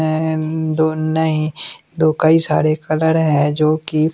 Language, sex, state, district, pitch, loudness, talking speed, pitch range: Hindi, male, Bihar, West Champaran, 155 Hz, -16 LUFS, 85 wpm, 155-160 Hz